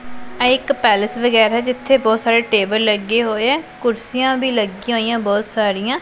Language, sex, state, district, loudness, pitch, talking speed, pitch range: Punjabi, female, Punjab, Pathankot, -17 LUFS, 230 Hz, 160 wpm, 215-250 Hz